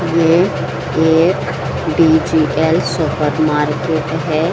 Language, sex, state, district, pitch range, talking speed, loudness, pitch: Hindi, female, Bihar, Saran, 155-165 Hz, 80 wpm, -15 LUFS, 160 Hz